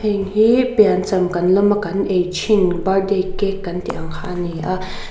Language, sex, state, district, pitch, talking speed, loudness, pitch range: Mizo, female, Mizoram, Aizawl, 190 Hz, 200 wpm, -18 LUFS, 180-200 Hz